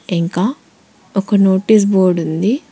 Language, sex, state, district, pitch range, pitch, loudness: Telugu, female, Telangana, Hyderabad, 180-215 Hz, 195 Hz, -15 LUFS